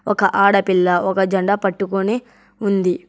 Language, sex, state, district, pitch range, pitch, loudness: Telugu, male, Telangana, Hyderabad, 190-200 Hz, 195 Hz, -17 LUFS